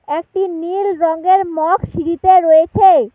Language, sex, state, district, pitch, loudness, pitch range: Bengali, female, West Bengal, Alipurduar, 355 Hz, -14 LUFS, 325-380 Hz